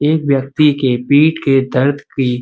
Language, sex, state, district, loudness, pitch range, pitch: Hindi, male, Uttar Pradesh, Budaun, -14 LUFS, 130-150 Hz, 140 Hz